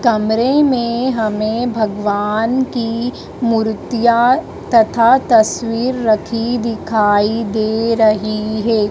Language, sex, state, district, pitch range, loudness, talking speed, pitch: Hindi, female, Madhya Pradesh, Dhar, 215-240 Hz, -15 LUFS, 85 wpm, 230 Hz